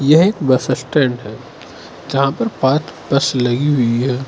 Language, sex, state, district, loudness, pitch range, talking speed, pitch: Hindi, male, Arunachal Pradesh, Lower Dibang Valley, -16 LUFS, 125-145 Hz, 155 wpm, 135 Hz